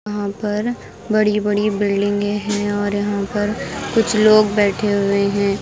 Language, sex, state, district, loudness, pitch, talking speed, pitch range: Hindi, female, Himachal Pradesh, Shimla, -18 LUFS, 205 Hz, 150 wpm, 205-210 Hz